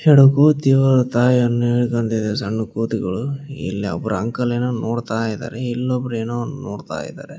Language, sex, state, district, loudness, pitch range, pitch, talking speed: Kannada, male, Karnataka, Raichur, -19 LUFS, 110-125 Hz, 120 Hz, 145 wpm